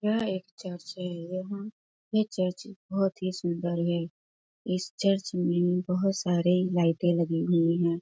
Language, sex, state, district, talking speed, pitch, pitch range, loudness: Hindi, female, Bihar, Muzaffarpur, 150 wpm, 180 Hz, 170-195 Hz, -28 LUFS